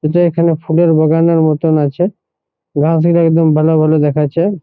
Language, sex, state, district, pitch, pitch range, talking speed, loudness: Bengali, male, West Bengal, Jhargram, 165 Hz, 155-170 Hz, 170 wpm, -12 LUFS